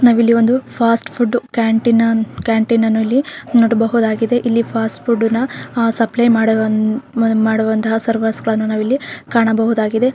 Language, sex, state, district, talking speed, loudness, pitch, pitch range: Kannada, female, Karnataka, Raichur, 120 wpm, -15 LUFS, 230 Hz, 225-235 Hz